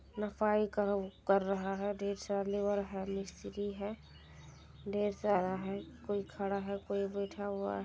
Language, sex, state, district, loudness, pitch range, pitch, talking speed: Hindi, female, Bihar, Saharsa, -36 LUFS, 195-205 Hz, 200 Hz, 145 wpm